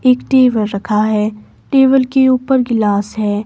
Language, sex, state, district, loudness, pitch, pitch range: Hindi, female, Himachal Pradesh, Shimla, -14 LUFS, 225 Hz, 210-260 Hz